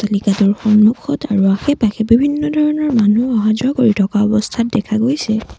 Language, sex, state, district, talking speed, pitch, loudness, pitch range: Assamese, female, Assam, Sonitpur, 150 wpm, 220 Hz, -15 LUFS, 210-265 Hz